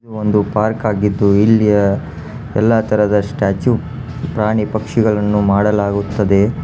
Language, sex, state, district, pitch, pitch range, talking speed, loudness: Kannada, male, Karnataka, Dharwad, 105 Hz, 100-110 Hz, 100 wpm, -15 LUFS